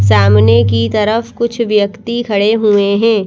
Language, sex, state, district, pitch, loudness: Hindi, female, Madhya Pradesh, Bhopal, 210 Hz, -12 LUFS